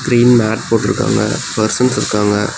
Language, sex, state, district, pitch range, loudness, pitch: Tamil, male, Tamil Nadu, Nilgiris, 105-125 Hz, -14 LUFS, 110 Hz